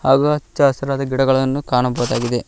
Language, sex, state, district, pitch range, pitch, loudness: Kannada, male, Karnataka, Koppal, 125-140 Hz, 135 Hz, -18 LUFS